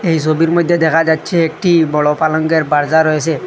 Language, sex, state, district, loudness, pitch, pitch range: Bengali, male, Assam, Hailakandi, -13 LUFS, 160 Hz, 155-165 Hz